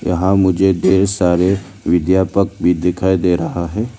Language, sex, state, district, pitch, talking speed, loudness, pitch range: Hindi, male, Arunachal Pradesh, Lower Dibang Valley, 95 Hz, 150 wpm, -15 LUFS, 90-95 Hz